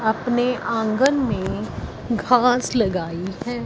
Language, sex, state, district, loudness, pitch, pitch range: Hindi, female, Punjab, Fazilka, -21 LUFS, 240 Hz, 215-250 Hz